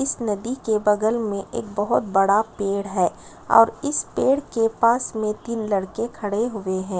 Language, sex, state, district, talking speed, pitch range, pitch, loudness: Hindi, female, Chhattisgarh, Sukma, 180 wpm, 200-230 Hz, 215 Hz, -22 LUFS